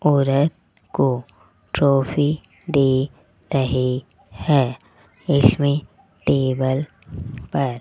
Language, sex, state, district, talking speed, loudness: Hindi, male, Rajasthan, Jaipur, 75 wpm, -20 LUFS